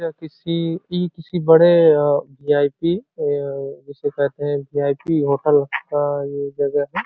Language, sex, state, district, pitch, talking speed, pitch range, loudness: Hindi, male, Uttar Pradesh, Ghazipur, 145 Hz, 170 wpm, 140-165 Hz, -19 LUFS